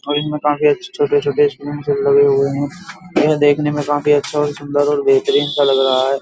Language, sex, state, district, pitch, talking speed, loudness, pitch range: Hindi, male, Uttar Pradesh, Jyotiba Phule Nagar, 145 Hz, 210 wpm, -16 LUFS, 140-150 Hz